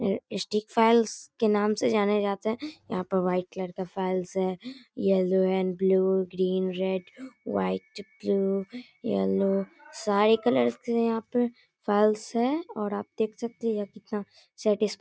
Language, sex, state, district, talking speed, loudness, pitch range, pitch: Hindi, male, Bihar, Darbhanga, 160 wpm, -27 LUFS, 190-225 Hz, 205 Hz